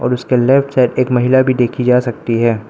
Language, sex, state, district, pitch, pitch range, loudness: Hindi, male, Arunachal Pradesh, Lower Dibang Valley, 125 Hz, 120-130 Hz, -13 LUFS